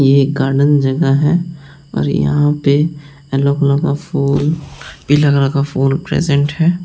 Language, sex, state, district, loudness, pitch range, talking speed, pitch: Hindi, male, Delhi, New Delhi, -14 LUFS, 140-150 Hz, 160 wpm, 145 Hz